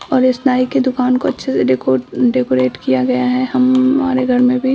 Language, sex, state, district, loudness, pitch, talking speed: Hindi, female, Bihar, Samastipur, -15 LUFS, 255 Hz, 215 wpm